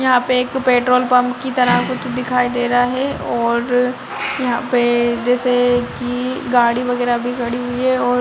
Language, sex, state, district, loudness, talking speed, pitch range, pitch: Hindi, female, Bihar, Gopalganj, -17 LUFS, 175 wpm, 245-250 Hz, 245 Hz